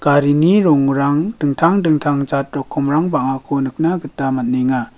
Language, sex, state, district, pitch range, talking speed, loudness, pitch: Garo, male, Meghalaya, West Garo Hills, 135-160 Hz, 110 wpm, -16 LUFS, 145 Hz